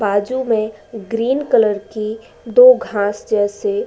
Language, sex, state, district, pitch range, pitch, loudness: Hindi, female, Uttar Pradesh, Budaun, 210-260 Hz, 220 Hz, -16 LUFS